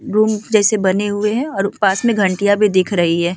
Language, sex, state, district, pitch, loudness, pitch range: Hindi, female, Uttar Pradesh, Budaun, 205 Hz, -16 LUFS, 190-215 Hz